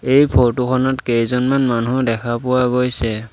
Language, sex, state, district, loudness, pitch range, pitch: Assamese, male, Assam, Sonitpur, -17 LUFS, 120-130 Hz, 125 Hz